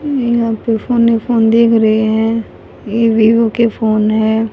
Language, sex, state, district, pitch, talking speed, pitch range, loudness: Hindi, female, Haryana, Rohtak, 225 Hz, 170 wpm, 220-230 Hz, -13 LUFS